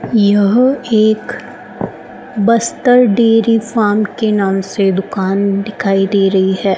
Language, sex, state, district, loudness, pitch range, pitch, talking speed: Hindi, female, Rajasthan, Bikaner, -13 LUFS, 195-235 Hz, 215 Hz, 115 wpm